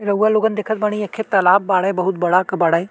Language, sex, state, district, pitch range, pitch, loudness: Bhojpuri, male, Uttar Pradesh, Deoria, 185-210 Hz, 195 Hz, -17 LUFS